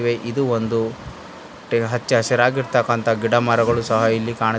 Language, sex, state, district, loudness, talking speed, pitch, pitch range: Kannada, male, Karnataka, Bidar, -19 LUFS, 130 wpm, 115 Hz, 115-120 Hz